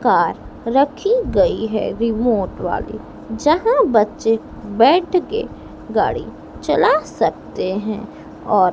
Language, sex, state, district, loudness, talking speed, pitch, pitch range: Hindi, female, Madhya Pradesh, Dhar, -18 LUFS, 105 wpm, 235 Hz, 220-355 Hz